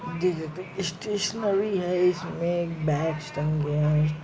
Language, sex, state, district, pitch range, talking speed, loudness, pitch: Hindi, male, Uttar Pradesh, Jyotiba Phule Nagar, 155-185 Hz, 115 wpm, -27 LUFS, 170 Hz